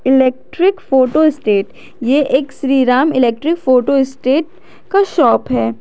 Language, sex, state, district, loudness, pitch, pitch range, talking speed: Hindi, female, Jharkhand, Garhwa, -14 LUFS, 270 Hz, 255-310 Hz, 135 wpm